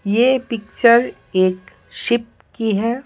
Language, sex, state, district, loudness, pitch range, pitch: Hindi, male, Bihar, Patna, -18 LUFS, 210-240 Hz, 230 Hz